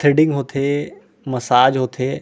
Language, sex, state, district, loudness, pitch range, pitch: Chhattisgarhi, male, Chhattisgarh, Rajnandgaon, -18 LUFS, 130-145 Hz, 135 Hz